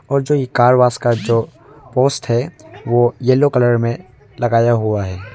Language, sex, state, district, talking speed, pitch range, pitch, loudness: Hindi, male, Arunachal Pradesh, Longding, 170 wpm, 115-130 Hz, 120 Hz, -16 LUFS